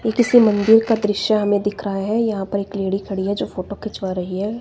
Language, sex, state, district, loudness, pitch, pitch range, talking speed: Hindi, female, Himachal Pradesh, Shimla, -19 LUFS, 205 Hz, 195-220 Hz, 260 wpm